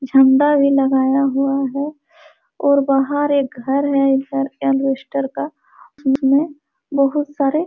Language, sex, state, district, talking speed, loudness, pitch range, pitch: Hindi, female, Bihar, Supaul, 135 wpm, -17 LUFS, 270-290 Hz, 275 Hz